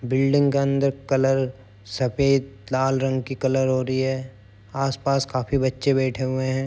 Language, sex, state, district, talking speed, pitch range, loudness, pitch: Hindi, male, Uttar Pradesh, Jyotiba Phule Nagar, 160 wpm, 130-135 Hz, -23 LUFS, 130 Hz